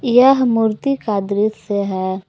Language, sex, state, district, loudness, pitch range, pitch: Hindi, female, Jharkhand, Garhwa, -17 LUFS, 200-245 Hz, 215 Hz